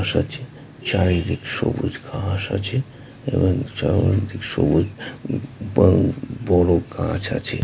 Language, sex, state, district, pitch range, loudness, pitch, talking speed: Bengali, male, West Bengal, North 24 Parganas, 95-130 Hz, -21 LUFS, 115 Hz, 95 wpm